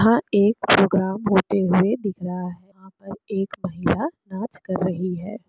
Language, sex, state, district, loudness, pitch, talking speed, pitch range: Hindi, female, Bihar, Sitamarhi, -22 LUFS, 195 Hz, 175 wpm, 185-205 Hz